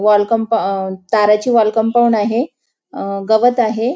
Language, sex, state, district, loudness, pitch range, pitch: Marathi, female, Maharashtra, Nagpur, -15 LUFS, 210-235 Hz, 220 Hz